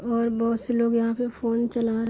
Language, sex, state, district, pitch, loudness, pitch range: Hindi, female, Jharkhand, Jamtara, 230 Hz, -25 LUFS, 230-235 Hz